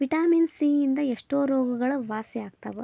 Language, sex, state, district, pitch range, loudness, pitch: Kannada, female, Karnataka, Belgaum, 245-290 Hz, -25 LUFS, 275 Hz